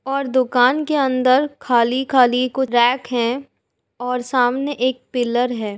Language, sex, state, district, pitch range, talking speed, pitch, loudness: Hindi, female, Uttar Pradesh, Jalaun, 245-265 Hz, 135 wpm, 255 Hz, -18 LUFS